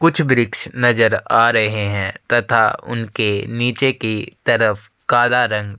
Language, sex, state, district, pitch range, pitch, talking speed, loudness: Hindi, male, Chhattisgarh, Sukma, 105-120 Hz, 115 Hz, 135 wpm, -17 LUFS